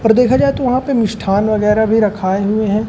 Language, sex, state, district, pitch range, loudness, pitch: Hindi, male, Madhya Pradesh, Umaria, 210-250 Hz, -14 LUFS, 220 Hz